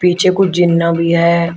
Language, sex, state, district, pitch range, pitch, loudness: Hindi, male, Uttar Pradesh, Shamli, 170-180 Hz, 170 Hz, -13 LUFS